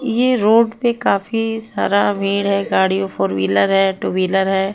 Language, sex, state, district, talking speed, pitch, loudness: Hindi, female, Himachal Pradesh, Shimla, 175 wpm, 195 Hz, -17 LUFS